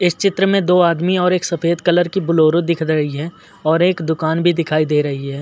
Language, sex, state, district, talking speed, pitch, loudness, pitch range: Hindi, male, Uttar Pradesh, Muzaffarnagar, 245 wpm, 170 Hz, -16 LUFS, 160-180 Hz